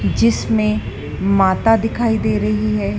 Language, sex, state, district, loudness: Hindi, female, Madhya Pradesh, Dhar, -17 LUFS